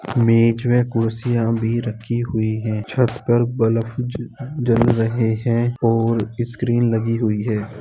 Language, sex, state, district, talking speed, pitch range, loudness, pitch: Hindi, male, Bihar, Bhagalpur, 140 wpm, 115-120 Hz, -19 LUFS, 115 Hz